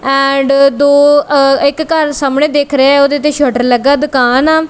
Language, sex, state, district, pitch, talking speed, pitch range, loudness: Punjabi, female, Punjab, Kapurthala, 280 Hz, 180 wpm, 275-290 Hz, -10 LUFS